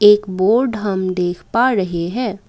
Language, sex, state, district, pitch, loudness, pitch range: Hindi, female, Assam, Kamrup Metropolitan, 200 Hz, -17 LUFS, 185-225 Hz